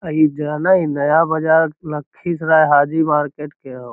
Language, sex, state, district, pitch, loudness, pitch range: Magahi, male, Bihar, Lakhisarai, 155 Hz, -16 LUFS, 150-160 Hz